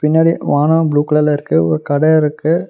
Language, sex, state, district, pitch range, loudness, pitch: Tamil, male, Tamil Nadu, Namakkal, 145-160 Hz, -14 LUFS, 150 Hz